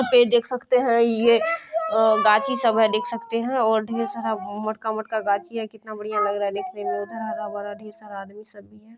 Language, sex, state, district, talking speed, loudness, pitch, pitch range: Maithili, female, Bihar, Saharsa, 200 wpm, -22 LUFS, 220 Hz, 210-235 Hz